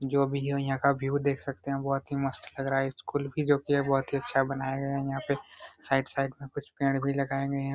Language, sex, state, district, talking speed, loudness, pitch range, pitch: Hindi, male, Chhattisgarh, Raigarh, 255 wpm, -30 LUFS, 135-140 Hz, 140 Hz